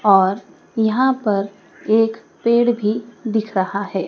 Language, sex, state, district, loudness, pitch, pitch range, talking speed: Hindi, female, Madhya Pradesh, Dhar, -19 LUFS, 220 Hz, 200-230 Hz, 130 wpm